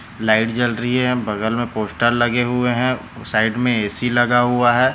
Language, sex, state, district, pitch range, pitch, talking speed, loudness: Hindi, male, Chhattisgarh, Korba, 115-125 Hz, 120 Hz, 195 wpm, -18 LUFS